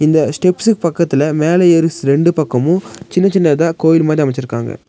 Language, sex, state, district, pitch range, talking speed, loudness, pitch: Tamil, female, Tamil Nadu, Nilgiris, 145-170 Hz, 160 wpm, -13 LUFS, 160 Hz